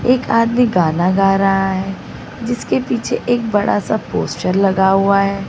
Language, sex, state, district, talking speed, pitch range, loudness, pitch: Hindi, female, Maharashtra, Mumbai Suburban, 165 wpm, 195-235 Hz, -16 LUFS, 195 Hz